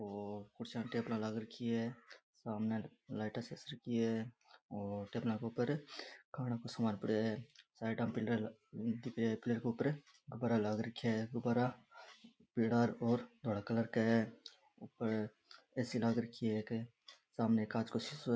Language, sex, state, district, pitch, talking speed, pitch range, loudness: Rajasthani, male, Rajasthan, Nagaur, 115 Hz, 170 wpm, 110-120 Hz, -39 LUFS